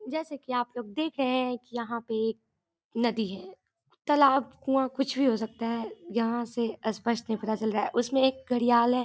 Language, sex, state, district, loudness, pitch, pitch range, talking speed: Maithili, female, Bihar, Darbhanga, -28 LUFS, 240 Hz, 225-260 Hz, 205 wpm